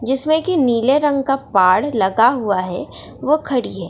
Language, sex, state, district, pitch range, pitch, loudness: Hindi, female, Bihar, Darbhanga, 200-285 Hz, 260 Hz, -16 LUFS